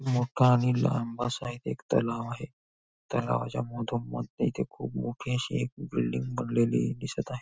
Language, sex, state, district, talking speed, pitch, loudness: Marathi, male, Maharashtra, Nagpur, 155 wpm, 115 Hz, -30 LUFS